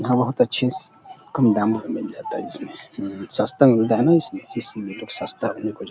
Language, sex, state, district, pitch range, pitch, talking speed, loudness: Hindi, male, Uttar Pradesh, Deoria, 110-150 Hz, 125 Hz, 225 wpm, -21 LUFS